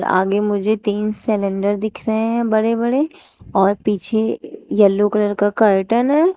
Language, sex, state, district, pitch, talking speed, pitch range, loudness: Hindi, female, Uttar Pradesh, Shamli, 210 Hz, 150 wpm, 205-225 Hz, -18 LUFS